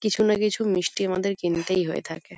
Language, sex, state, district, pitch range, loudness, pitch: Bengali, female, West Bengal, Kolkata, 180-210 Hz, -24 LUFS, 195 Hz